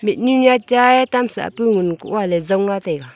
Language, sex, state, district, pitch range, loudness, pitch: Wancho, female, Arunachal Pradesh, Longding, 195-250 Hz, -16 LUFS, 210 Hz